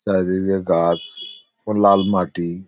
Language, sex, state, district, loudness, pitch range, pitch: Bengali, male, West Bengal, Paschim Medinipur, -19 LUFS, 85-100 Hz, 95 Hz